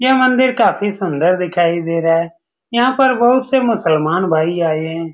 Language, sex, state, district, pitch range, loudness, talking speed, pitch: Hindi, male, Bihar, Saran, 165-255 Hz, -15 LUFS, 185 wpm, 180 Hz